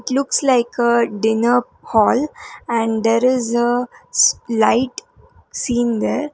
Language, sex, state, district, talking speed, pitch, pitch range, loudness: English, female, Karnataka, Bangalore, 115 wpm, 240 Hz, 230-255 Hz, -17 LUFS